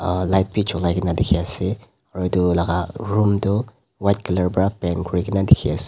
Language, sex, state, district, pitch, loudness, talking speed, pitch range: Nagamese, male, Nagaland, Dimapur, 95 Hz, -20 LUFS, 205 wpm, 90-100 Hz